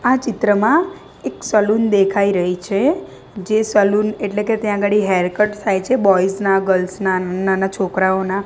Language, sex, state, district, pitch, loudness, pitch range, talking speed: Gujarati, female, Gujarat, Gandhinagar, 200 Hz, -17 LUFS, 190-215 Hz, 165 wpm